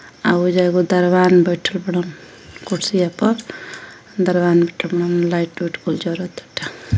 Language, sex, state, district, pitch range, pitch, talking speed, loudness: Hindi, female, Uttar Pradesh, Ghazipur, 175-185 Hz, 180 Hz, 130 wpm, -18 LUFS